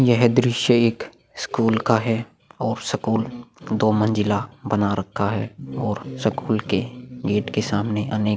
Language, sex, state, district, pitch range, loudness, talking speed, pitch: Hindi, male, Chhattisgarh, Korba, 105-120 Hz, -22 LUFS, 145 wpm, 110 Hz